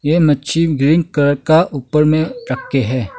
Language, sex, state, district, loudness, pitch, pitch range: Hindi, male, Arunachal Pradesh, Longding, -15 LUFS, 150 Hz, 140-160 Hz